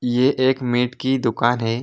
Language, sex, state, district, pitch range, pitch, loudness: Hindi, male, Jharkhand, Jamtara, 120-130 Hz, 125 Hz, -20 LUFS